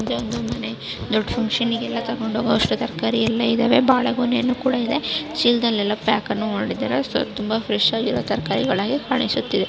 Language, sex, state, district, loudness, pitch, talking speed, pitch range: Kannada, female, Karnataka, Raichur, -21 LUFS, 230 Hz, 155 wpm, 220-245 Hz